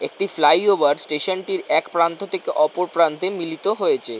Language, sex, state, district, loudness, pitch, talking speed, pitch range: Bengali, male, West Bengal, North 24 Parganas, -19 LUFS, 180 Hz, 155 wpm, 160-195 Hz